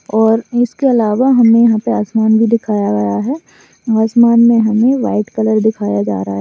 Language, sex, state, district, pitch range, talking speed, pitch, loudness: Hindi, female, Maharashtra, Sindhudurg, 215-235 Hz, 180 wpm, 225 Hz, -13 LUFS